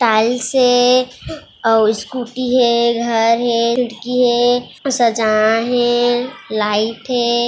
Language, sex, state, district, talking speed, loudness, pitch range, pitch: Hindi, female, Chhattisgarh, Kabirdham, 105 wpm, -15 LUFS, 230-245 Hz, 240 Hz